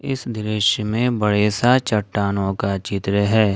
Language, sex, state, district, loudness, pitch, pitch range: Hindi, male, Jharkhand, Ranchi, -20 LUFS, 105 Hz, 100-115 Hz